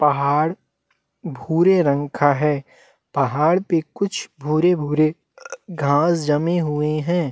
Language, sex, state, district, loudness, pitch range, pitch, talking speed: Hindi, male, Chhattisgarh, Jashpur, -20 LUFS, 145-175 Hz, 155 Hz, 125 wpm